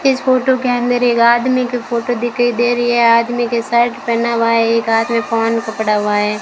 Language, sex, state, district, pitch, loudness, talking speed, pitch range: Hindi, female, Rajasthan, Bikaner, 235 Hz, -15 LUFS, 225 wpm, 230-245 Hz